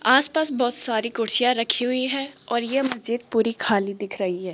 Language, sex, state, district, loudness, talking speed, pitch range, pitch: Hindi, female, Rajasthan, Jaipur, -22 LUFS, 200 wpm, 220-255 Hz, 235 Hz